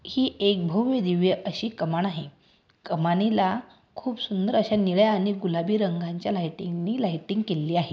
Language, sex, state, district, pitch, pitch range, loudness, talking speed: Marathi, female, Maharashtra, Aurangabad, 195 Hz, 175-215 Hz, -25 LUFS, 135 wpm